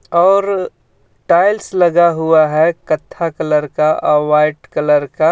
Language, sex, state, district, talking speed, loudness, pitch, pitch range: Hindi, male, Jharkhand, Ranchi, 125 wpm, -14 LUFS, 160 Hz, 150-175 Hz